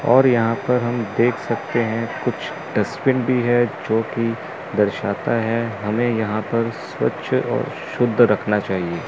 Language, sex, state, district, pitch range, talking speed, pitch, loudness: Hindi, male, Chandigarh, Chandigarh, 105-120 Hz, 150 wpm, 115 Hz, -20 LUFS